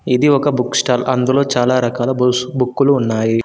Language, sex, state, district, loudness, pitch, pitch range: Telugu, male, Telangana, Mahabubabad, -15 LUFS, 125 Hz, 125-135 Hz